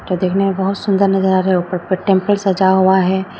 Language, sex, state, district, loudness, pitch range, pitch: Hindi, female, Arunachal Pradesh, Lower Dibang Valley, -15 LUFS, 185-195 Hz, 190 Hz